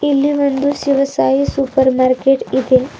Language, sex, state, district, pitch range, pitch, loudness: Kannada, female, Karnataka, Bidar, 255-280 Hz, 270 Hz, -15 LUFS